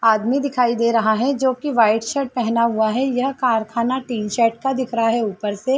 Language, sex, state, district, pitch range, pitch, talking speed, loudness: Hindi, female, Uttar Pradesh, Gorakhpur, 225-260 Hz, 235 Hz, 220 wpm, -19 LUFS